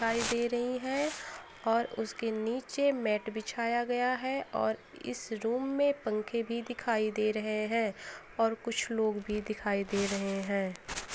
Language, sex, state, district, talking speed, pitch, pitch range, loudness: Hindi, female, Uttar Pradesh, Ghazipur, 155 wpm, 225 Hz, 215-240 Hz, -33 LUFS